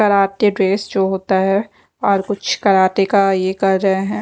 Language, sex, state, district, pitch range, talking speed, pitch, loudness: Hindi, female, Odisha, Khordha, 190-200 Hz, 185 wpm, 195 Hz, -16 LUFS